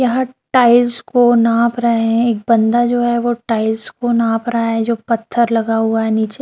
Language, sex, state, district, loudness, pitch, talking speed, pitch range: Hindi, female, Bihar, Darbhanga, -15 LUFS, 235 Hz, 215 wpm, 225-240 Hz